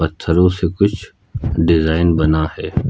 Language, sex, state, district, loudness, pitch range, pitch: Hindi, male, Uttar Pradesh, Lucknow, -16 LUFS, 80-95 Hz, 85 Hz